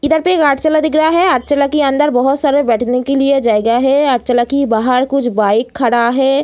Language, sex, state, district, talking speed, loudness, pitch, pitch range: Hindi, female, Bihar, Gaya, 195 wpm, -13 LUFS, 270 Hz, 245-290 Hz